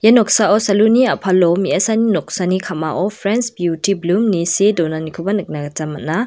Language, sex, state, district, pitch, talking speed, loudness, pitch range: Garo, female, Meghalaya, West Garo Hills, 190 Hz, 160 wpm, -16 LUFS, 170-215 Hz